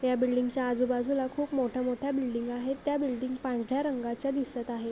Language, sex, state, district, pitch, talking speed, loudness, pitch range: Marathi, female, Maharashtra, Pune, 255 Hz, 170 wpm, -31 LUFS, 245-275 Hz